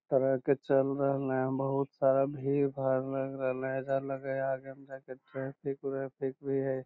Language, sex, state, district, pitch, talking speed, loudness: Magahi, male, Bihar, Lakhisarai, 135 Hz, 175 wpm, -32 LUFS